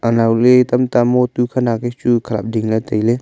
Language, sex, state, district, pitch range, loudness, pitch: Wancho, male, Arunachal Pradesh, Longding, 115-125 Hz, -15 LUFS, 120 Hz